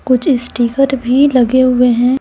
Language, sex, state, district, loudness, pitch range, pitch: Hindi, female, Jharkhand, Deoghar, -12 LUFS, 245-270 Hz, 255 Hz